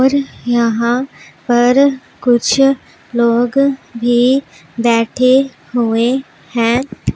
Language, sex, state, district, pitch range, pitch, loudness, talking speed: Hindi, female, Punjab, Pathankot, 235-265 Hz, 245 Hz, -14 LUFS, 75 wpm